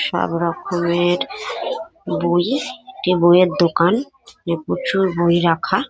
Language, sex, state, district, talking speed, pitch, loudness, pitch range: Bengali, female, West Bengal, Paschim Medinipur, 90 wpm, 175 Hz, -18 LUFS, 170-190 Hz